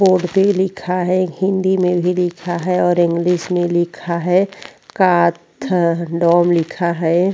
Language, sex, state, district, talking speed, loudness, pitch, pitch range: Hindi, female, Uttarakhand, Tehri Garhwal, 130 wpm, -16 LUFS, 175 Hz, 170-185 Hz